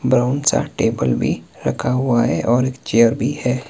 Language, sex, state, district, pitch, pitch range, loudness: Hindi, male, Himachal Pradesh, Shimla, 125 Hz, 120-130 Hz, -18 LUFS